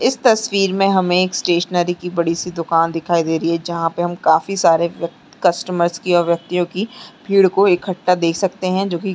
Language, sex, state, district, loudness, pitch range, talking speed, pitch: Hindi, female, Chhattisgarh, Sarguja, -17 LUFS, 170-195 Hz, 215 wpm, 180 Hz